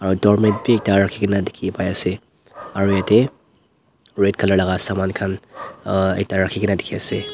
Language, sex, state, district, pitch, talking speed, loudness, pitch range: Nagamese, male, Nagaland, Dimapur, 100 Hz, 140 wpm, -18 LUFS, 95-105 Hz